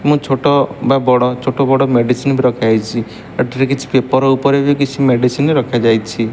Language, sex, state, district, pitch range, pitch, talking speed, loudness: Odia, male, Odisha, Malkangiri, 120-140 Hz, 130 Hz, 150 wpm, -14 LUFS